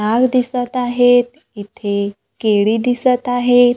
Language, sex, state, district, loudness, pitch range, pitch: Marathi, female, Maharashtra, Gondia, -16 LUFS, 215-245 Hz, 245 Hz